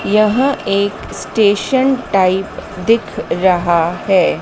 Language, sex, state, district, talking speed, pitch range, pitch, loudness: Hindi, female, Madhya Pradesh, Dhar, 95 wpm, 185-225 Hz, 200 Hz, -15 LUFS